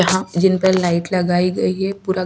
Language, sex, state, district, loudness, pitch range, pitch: Hindi, female, Haryana, Charkhi Dadri, -17 LUFS, 180-190 Hz, 185 Hz